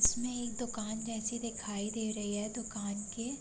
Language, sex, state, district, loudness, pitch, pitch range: Hindi, female, Bihar, Sitamarhi, -36 LUFS, 225 Hz, 210-235 Hz